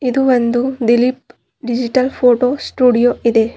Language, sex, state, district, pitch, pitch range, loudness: Kannada, female, Karnataka, Bidar, 245 Hz, 240-255 Hz, -14 LUFS